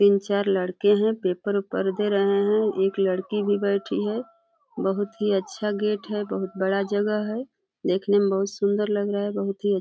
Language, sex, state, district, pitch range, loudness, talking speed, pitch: Hindi, female, Uttar Pradesh, Deoria, 195-210 Hz, -24 LUFS, 200 wpm, 205 Hz